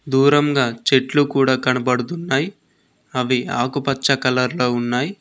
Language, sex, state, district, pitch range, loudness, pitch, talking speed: Telugu, male, Telangana, Mahabubabad, 125-140 Hz, -19 LUFS, 135 Hz, 105 wpm